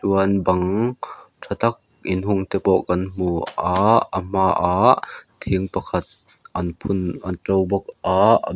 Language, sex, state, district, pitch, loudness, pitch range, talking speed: Mizo, male, Mizoram, Aizawl, 95 Hz, -20 LUFS, 90-100 Hz, 155 wpm